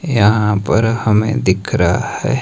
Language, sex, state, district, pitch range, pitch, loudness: Hindi, male, Himachal Pradesh, Shimla, 100-115 Hz, 110 Hz, -15 LUFS